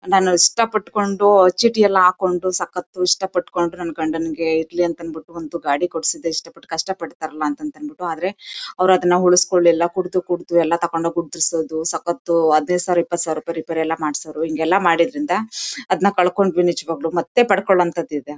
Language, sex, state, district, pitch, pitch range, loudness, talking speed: Kannada, female, Karnataka, Mysore, 175 Hz, 165-185 Hz, -19 LUFS, 155 wpm